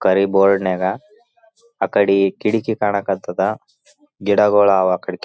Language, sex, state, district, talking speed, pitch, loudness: Kannada, male, Karnataka, Raichur, 115 wpm, 100 Hz, -17 LUFS